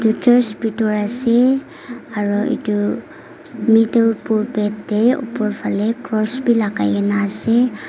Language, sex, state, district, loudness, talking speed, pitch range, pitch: Nagamese, female, Nagaland, Kohima, -17 LUFS, 105 wpm, 210-245 Hz, 225 Hz